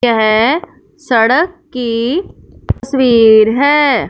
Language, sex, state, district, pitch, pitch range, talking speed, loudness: Hindi, male, Punjab, Fazilka, 250 Hz, 230-290 Hz, 75 wpm, -12 LUFS